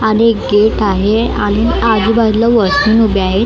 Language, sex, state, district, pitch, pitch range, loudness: Marathi, female, Maharashtra, Mumbai Suburban, 220 Hz, 205-225 Hz, -12 LUFS